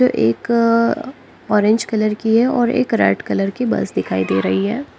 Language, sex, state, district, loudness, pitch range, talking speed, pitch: Hindi, female, Uttar Pradesh, Lalitpur, -17 LUFS, 195-240 Hz, 190 wpm, 225 Hz